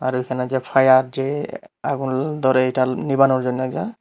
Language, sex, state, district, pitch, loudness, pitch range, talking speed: Bengali, male, Tripura, Unakoti, 130 Hz, -20 LUFS, 130-135 Hz, 150 wpm